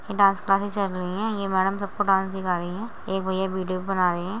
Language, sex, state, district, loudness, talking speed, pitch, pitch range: Hindi, female, Uttar Pradesh, Muzaffarnagar, -25 LUFS, 270 wpm, 190 Hz, 185-200 Hz